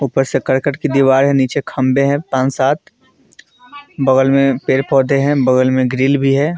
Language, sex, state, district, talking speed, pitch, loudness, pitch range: Hindi, male, Bihar, Vaishali, 185 wpm, 135 Hz, -14 LUFS, 130-140 Hz